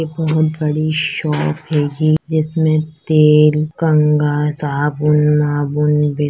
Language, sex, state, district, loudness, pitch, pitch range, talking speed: Hindi, female, Uttar Pradesh, Deoria, -15 LUFS, 150 Hz, 150-155 Hz, 125 wpm